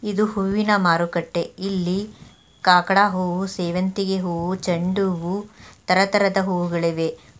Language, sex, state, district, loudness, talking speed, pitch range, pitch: Kannada, female, Karnataka, Mysore, -21 LUFS, 90 wpm, 175-195 Hz, 185 Hz